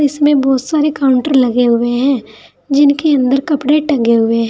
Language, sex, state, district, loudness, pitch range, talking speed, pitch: Hindi, female, Uttar Pradesh, Saharanpur, -13 LUFS, 240-290 Hz, 160 wpm, 270 Hz